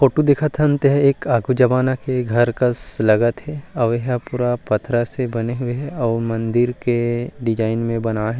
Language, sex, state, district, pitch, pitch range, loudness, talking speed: Chhattisgarhi, male, Chhattisgarh, Rajnandgaon, 120 Hz, 115-130 Hz, -19 LUFS, 200 wpm